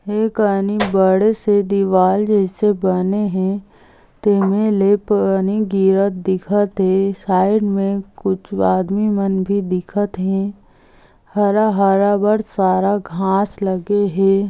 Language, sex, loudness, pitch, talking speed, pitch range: Chhattisgarhi, female, -17 LUFS, 195 Hz, 125 wpm, 190-205 Hz